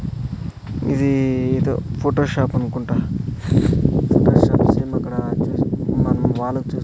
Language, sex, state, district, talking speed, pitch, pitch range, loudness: Telugu, male, Andhra Pradesh, Sri Satya Sai, 105 wpm, 135 Hz, 130-140 Hz, -19 LUFS